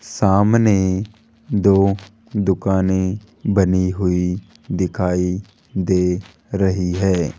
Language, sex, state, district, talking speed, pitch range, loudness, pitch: Hindi, male, Rajasthan, Jaipur, 75 wpm, 90-100 Hz, -19 LUFS, 95 Hz